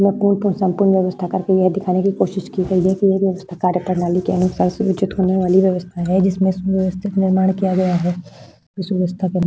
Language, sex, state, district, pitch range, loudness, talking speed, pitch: Hindi, female, Bihar, Vaishali, 180-190 Hz, -18 LUFS, 220 wpm, 185 Hz